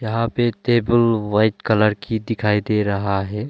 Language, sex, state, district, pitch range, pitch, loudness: Hindi, male, Arunachal Pradesh, Longding, 105-115 Hz, 110 Hz, -19 LUFS